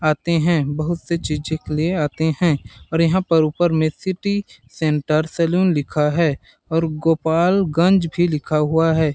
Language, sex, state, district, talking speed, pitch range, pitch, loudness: Hindi, male, Chhattisgarh, Balrampur, 165 wpm, 155-170 Hz, 160 Hz, -19 LUFS